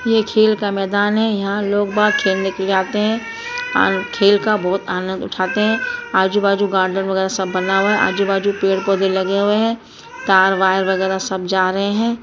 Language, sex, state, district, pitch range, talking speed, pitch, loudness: Hindi, female, Chhattisgarh, Bastar, 190-210 Hz, 200 wpm, 200 Hz, -17 LUFS